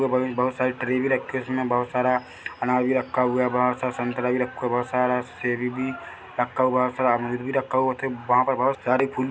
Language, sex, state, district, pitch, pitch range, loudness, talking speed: Hindi, male, Chhattisgarh, Bilaspur, 125 Hz, 125-130 Hz, -24 LUFS, 260 wpm